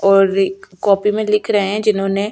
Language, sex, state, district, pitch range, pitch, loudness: Hindi, female, Chhattisgarh, Sukma, 195-210 Hz, 200 Hz, -16 LUFS